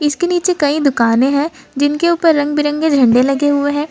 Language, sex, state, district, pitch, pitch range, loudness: Hindi, female, Jharkhand, Ranchi, 290 Hz, 280-310 Hz, -14 LUFS